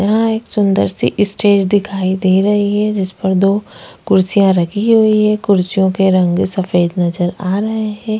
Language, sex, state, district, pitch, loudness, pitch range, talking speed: Hindi, female, Uttarakhand, Tehri Garhwal, 195 Hz, -14 LUFS, 185-210 Hz, 170 wpm